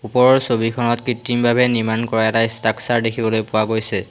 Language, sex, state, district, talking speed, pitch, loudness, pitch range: Assamese, male, Assam, Hailakandi, 145 wpm, 115 Hz, -17 LUFS, 110-120 Hz